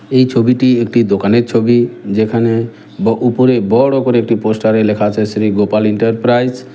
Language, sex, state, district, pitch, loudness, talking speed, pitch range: Bengali, male, West Bengal, Cooch Behar, 115 Hz, -13 LUFS, 170 wpm, 110-120 Hz